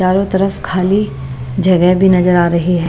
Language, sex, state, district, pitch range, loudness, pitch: Hindi, female, Maharashtra, Mumbai Suburban, 170-190 Hz, -13 LUFS, 180 Hz